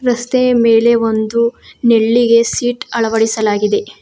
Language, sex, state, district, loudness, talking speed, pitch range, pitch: Kannada, female, Karnataka, Bangalore, -13 LUFS, 90 wpm, 225-245 Hz, 235 Hz